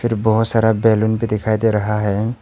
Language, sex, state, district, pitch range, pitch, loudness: Hindi, male, Arunachal Pradesh, Papum Pare, 105-115 Hz, 110 Hz, -17 LUFS